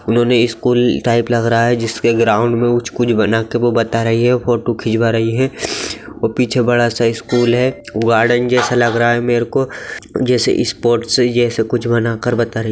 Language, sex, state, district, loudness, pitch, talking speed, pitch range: Magahi, male, Bihar, Gaya, -15 LUFS, 120 Hz, 195 wpm, 115-120 Hz